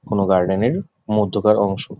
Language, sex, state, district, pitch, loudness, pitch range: Bengali, male, West Bengal, Jhargram, 105 Hz, -19 LUFS, 95-110 Hz